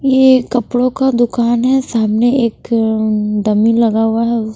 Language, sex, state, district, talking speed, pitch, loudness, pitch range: Hindi, female, Punjab, Pathankot, 170 wpm, 235 Hz, -13 LUFS, 220-250 Hz